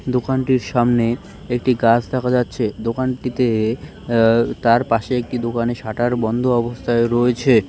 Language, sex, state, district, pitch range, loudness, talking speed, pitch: Bengali, male, West Bengal, Dakshin Dinajpur, 115-125 Hz, -19 LUFS, 135 wpm, 120 Hz